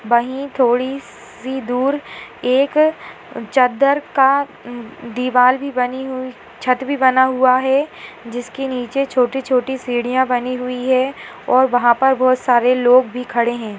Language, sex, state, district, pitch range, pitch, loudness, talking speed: Hindi, female, Bihar, Madhepura, 245-265 Hz, 255 Hz, -17 LUFS, 140 wpm